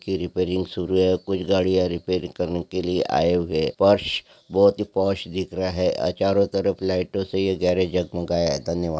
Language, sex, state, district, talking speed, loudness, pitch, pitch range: Hindi, male, Maharashtra, Aurangabad, 200 wpm, -23 LUFS, 90 Hz, 90-95 Hz